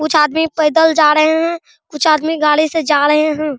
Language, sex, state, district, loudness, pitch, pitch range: Hindi, male, Bihar, Araria, -13 LUFS, 310 Hz, 300-320 Hz